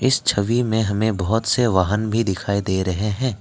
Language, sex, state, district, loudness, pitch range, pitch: Hindi, male, Assam, Kamrup Metropolitan, -20 LUFS, 100-115 Hz, 110 Hz